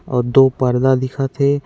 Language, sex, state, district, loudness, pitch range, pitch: Chhattisgarhi, male, Chhattisgarh, Raigarh, -16 LUFS, 125-140 Hz, 130 Hz